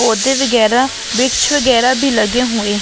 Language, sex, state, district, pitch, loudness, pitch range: Hindi, female, Punjab, Pathankot, 250 Hz, -13 LUFS, 220-265 Hz